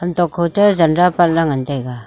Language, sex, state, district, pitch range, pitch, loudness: Wancho, female, Arunachal Pradesh, Longding, 140-175 Hz, 170 Hz, -15 LUFS